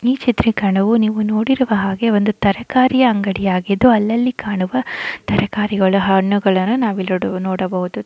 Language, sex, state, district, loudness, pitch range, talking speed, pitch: Kannada, female, Karnataka, Chamarajanagar, -16 LUFS, 195-235 Hz, 105 wpm, 210 Hz